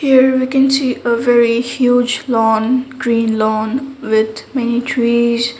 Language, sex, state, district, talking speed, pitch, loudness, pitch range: English, female, Sikkim, Gangtok, 140 wpm, 240 Hz, -15 LUFS, 230-260 Hz